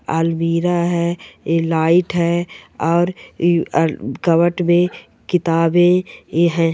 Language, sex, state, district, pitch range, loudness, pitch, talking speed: Hindi, male, Goa, North and South Goa, 165-175 Hz, -17 LUFS, 170 Hz, 90 wpm